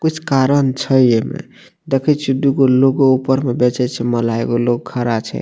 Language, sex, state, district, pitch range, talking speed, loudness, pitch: Maithili, male, Bihar, Madhepura, 120-135 Hz, 200 wpm, -15 LUFS, 130 Hz